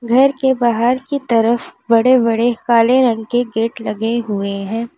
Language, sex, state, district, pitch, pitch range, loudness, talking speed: Hindi, female, Uttar Pradesh, Lalitpur, 235 Hz, 225-250 Hz, -16 LUFS, 170 wpm